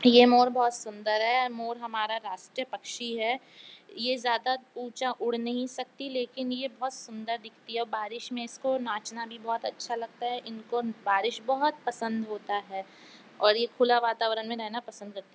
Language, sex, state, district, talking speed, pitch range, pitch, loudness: Hindi, female, Bihar, Jamui, 185 wpm, 220-245 Hz, 235 Hz, -29 LUFS